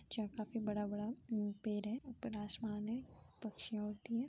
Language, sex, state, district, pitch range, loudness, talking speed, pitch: Hindi, female, Uttar Pradesh, Jyotiba Phule Nagar, 210-230 Hz, -43 LUFS, 170 wpm, 215 Hz